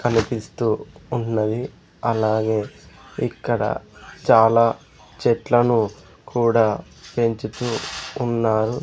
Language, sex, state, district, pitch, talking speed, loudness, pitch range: Telugu, male, Andhra Pradesh, Sri Satya Sai, 115 Hz, 60 wpm, -21 LUFS, 110-120 Hz